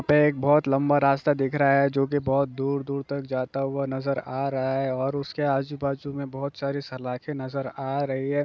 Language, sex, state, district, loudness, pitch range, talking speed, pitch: Hindi, male, Bihar, Gopalganj, -26 LUFS, 135-140 Hz, 205 wpm, 140 Hz